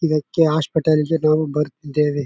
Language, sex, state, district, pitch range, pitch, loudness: Kannada, male, Karnataka, Bellary, 150-160 Hz, 155 Hz, -19 LUFS